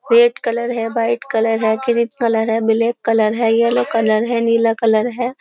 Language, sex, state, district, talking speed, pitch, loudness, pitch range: Hindi, female, Uttar Pradesh, Jyotiba Phule Nagar, 200 wpm, 230 Hz, -16 LUFS, 225-235 Hz